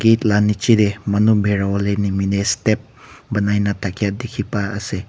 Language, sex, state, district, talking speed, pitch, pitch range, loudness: Nagamese, male, Nagaland, Kohima, 155 wpm, 105 Hz, 100-110 Hz, -18 LUFS